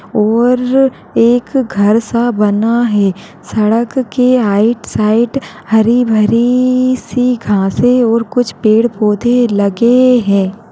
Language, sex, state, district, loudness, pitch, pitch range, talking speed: Hindi, female, Uttar Pradesh, Jalaun, -12 LUFS, 230 Hz, 215-245 Hz, 105 wpm